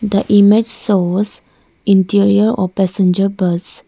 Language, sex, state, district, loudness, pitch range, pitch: English, female, Arunachal Pradesh, Lower Dibang Valley, -14 LUFS, 190-205 Hz, 200 Hz